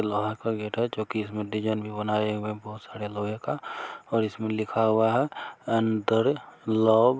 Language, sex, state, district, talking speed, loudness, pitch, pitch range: Maithili, male, Bihar, Begusarai, 190 wpm, -27 LUFS, 110 Hz, 105-110 Hz